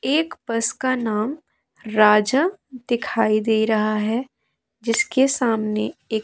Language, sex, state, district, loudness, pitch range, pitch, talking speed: Hindi, female, Madhya Pradesh, Katni, -21 LUFS, 215-265 Hz, 230 Hz, 115 wpm